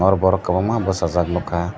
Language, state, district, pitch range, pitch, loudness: Kokborok, Tripura, Dhalai, 85-95 Hz, 90 Hz, -20 LUFS